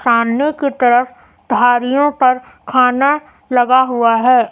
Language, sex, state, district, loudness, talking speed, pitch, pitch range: Hindi, female, Uttar Pradesh, Lucknow, -14 LUFS, 120 wpm, 255 Hz, 245-270 Hz